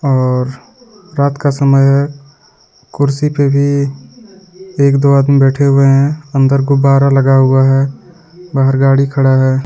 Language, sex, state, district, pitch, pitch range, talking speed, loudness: Hindi, male, Jharkhand, Deoghar, 140 Hz, 135-145 Hz, 145 wpm, -11 LUFS